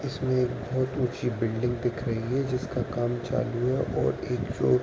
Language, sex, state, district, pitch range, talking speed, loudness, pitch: Hindi, male, Uttar Pradesh, Varanasi, 120-130 Hz, 200 wpm, -28 LUFS, 125 Hz